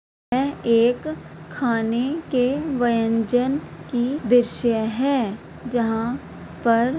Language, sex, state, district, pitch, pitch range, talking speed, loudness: Hindi, female, Bihar, Purnia, 245 Hz, 230-265 Hz, 85 wpm, -22 LUFS